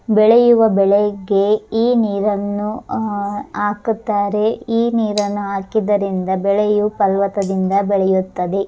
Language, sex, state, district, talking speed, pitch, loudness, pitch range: Kannada, male, Karnataka, Dharwad, 75 wpm, 205 Hz, -17 LUFS, 200-215 Hz